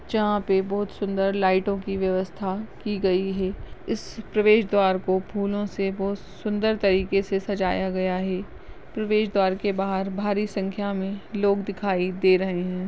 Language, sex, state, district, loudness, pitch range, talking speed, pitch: Hindi, female, Goa, North and South Goa, -25 LUFS, 190-205 Hz, 160 wpm, 195 Hz